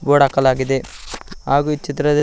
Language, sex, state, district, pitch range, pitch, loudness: Kannada, male, Karnataka, Koppal, 135-150 Hz, 140 Hz, -17 LUFS